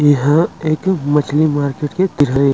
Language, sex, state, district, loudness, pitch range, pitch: Chhattisgarhi, male, Chhattisgarh, Rajnandgaon, -16 LUFS, 145-155 Hz, 150 Hz